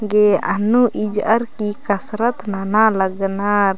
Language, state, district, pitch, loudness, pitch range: Kurukh, Chhattisgarh, Jashpur, 210 Hz, -18 LUFS, 195-220 Hz